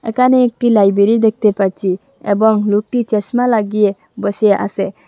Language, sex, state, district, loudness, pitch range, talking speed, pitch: Bengali, female, Assam, Hailakandi, -14 LUFS, 200-230 Hz, 130 wpm, 210 Hz